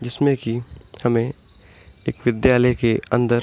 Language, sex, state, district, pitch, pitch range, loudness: Hindi, male, Uttar Pradesh, Muzaffarnagar, 120 Hz, 105-125 Hz, -20 LUFS